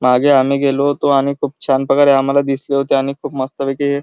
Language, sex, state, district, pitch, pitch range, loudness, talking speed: Marathi, male, Maharashtra, Chandrapur, 140 Hz, 135-140 Hz, -15 LUFS, 225 wpm